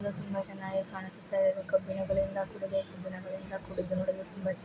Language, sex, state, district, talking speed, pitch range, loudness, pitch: Kannada, female, Karnataka, Shimoga, 155 wpm, 190-195 Hz, -34 LUFS, 190 Hz